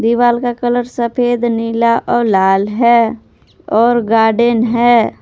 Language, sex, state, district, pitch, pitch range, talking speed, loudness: Hindi, female, Jharkhand, Palamu, 235 Hz, 225-240 Hz, 125 wpm, -13 LUFS